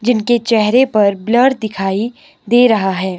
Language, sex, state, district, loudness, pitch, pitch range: Hindi, female, Himachal Pradesh, Shimla, -13 LUFS, 225 Hz, 200-245 Hz